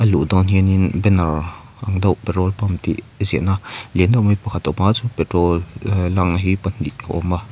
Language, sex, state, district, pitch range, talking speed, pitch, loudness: Mizo, male, Mizoram, Aizawl, 85-105 Hz, 215 wpm, 95 Hz, -19 LUFS